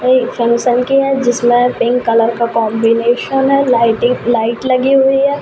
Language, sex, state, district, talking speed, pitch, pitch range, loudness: Hindi, female, Uttar Pradesh, Ghazipur, 165 wpm, 245 Hz, 235-265 Hz, -13 LUFS